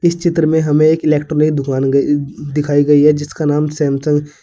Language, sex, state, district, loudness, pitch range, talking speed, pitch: Hindi, male, Uttar Pradesh, Saharanpur, -14 LUFS, 145-155 Hz, 160 wpm, 150 Hz